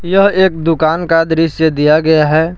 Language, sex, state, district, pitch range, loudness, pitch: Hindi, male, Jharkhand, Palamu, 160-170 Hz, -12 LUFS, 160 Hz